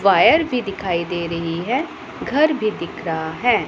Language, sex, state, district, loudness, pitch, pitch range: Hindi, female, Punjab, Pathankot, -20 LUFS, 200 Hz, 170-270 Hz